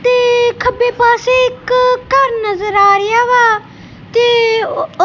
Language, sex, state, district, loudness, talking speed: Punjabi, female, Punjab, Kapurthala, -12 LUFS, 120 wpm